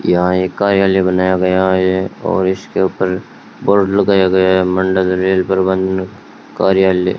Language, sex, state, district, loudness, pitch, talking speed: Hindi, male, Rajasthan, Bikaner, -14 LUFS, 95 Hz, 140 wpm